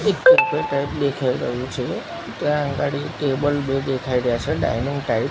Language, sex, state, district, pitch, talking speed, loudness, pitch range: Gujarati, male, Gujarat, Gandhinagar, 140 Hz, 180 wpm, -21 LUFS, 130-145 Hz